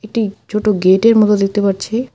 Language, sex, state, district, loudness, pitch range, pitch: Bengali, female, West Bengal, Alipurduar, -14 LUFS, 195-220 Hz, 210 Hz